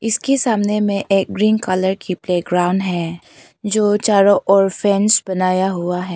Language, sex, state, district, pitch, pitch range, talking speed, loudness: Hindi, female, Arunachal Pradesh, Papum Pare, 195 Hz, 185-210 Hz, 155 wpm, -16 LUFS